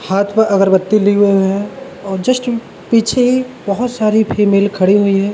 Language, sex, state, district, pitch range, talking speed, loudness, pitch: Hindi, male, Uttarakhand, Uttarkashi, 195-240 Hz, 180 wpm, -14 LUFS, 205 Hz